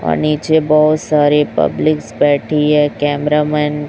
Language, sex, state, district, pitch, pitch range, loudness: Hindi, male, Chhattisgarh, Raipur, 150 Hz, 145-150 Hz, -14 LUFS